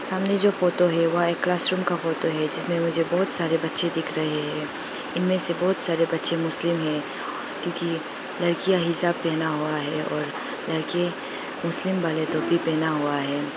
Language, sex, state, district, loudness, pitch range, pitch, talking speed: Hindi, female, Arunachal Pradesh, Lower Dibang Valley, -23 LUFS, 160-175 Hz, 165 Hz, 175 wpm